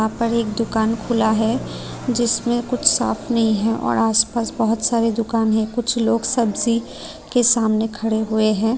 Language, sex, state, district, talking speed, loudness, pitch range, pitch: Hindi, female, Tripura, Unakoti, 170 wpm, -19 LUFS, 220-235 Hz, 230 Hz